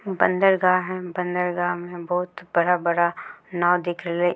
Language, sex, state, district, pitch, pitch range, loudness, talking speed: Maithili, female, Bihar, Samastipur, 180 Hz, 175-185 Hz, -23 LUFS, 125 wpm